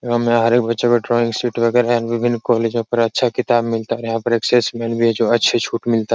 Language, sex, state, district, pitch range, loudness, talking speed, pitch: Hindi, male, Uttar Pradesh, Etah, 115-120 Hz, -17 LUFS, 235 wpm, 115 Hz